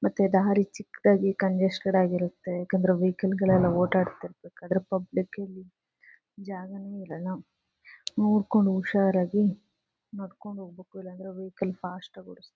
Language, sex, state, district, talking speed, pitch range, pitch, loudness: Kannada, female, Karnataka, Chamarajanagar, 110 wpm, 185-200 Hz, 190 Hz, -26 LUFS